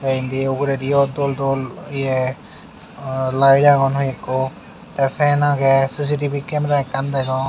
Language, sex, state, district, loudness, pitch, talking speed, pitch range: Chakma, male, Tripura, Unakoti, -18 LUFS, 135 Hz, 130 wpm, 135-140 Hz